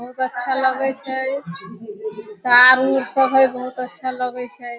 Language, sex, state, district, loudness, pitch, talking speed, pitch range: Hindi, female, Bihar, Sitamarhi, -17 LUFS, 255 Hz, 150 wpm, 240-265 Hz